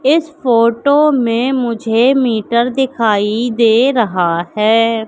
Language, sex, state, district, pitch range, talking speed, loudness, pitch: Hindi, female, Madhya Pradesh, Katni, 225-260 Hz, 105 wpm, -13 LUFS, 235 Hz